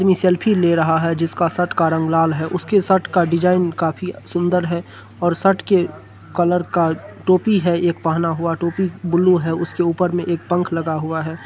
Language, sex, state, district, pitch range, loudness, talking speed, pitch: Hindi, male, Bihar, Supaul, 165-180 Hz, -18 LUFS, 205 wpm, 175 Hz